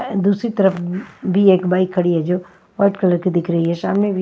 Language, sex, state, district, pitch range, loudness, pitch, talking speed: Hindi, female, Himachal Pradesh, Shimla, 175-200 Hz, -18 LUFS, 185 Hz, 200 wpm